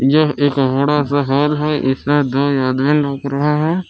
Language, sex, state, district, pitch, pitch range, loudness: Hindi, male, Jharkhand, Palamu, 145 Hz, 135-150 Hz, -16 LUFS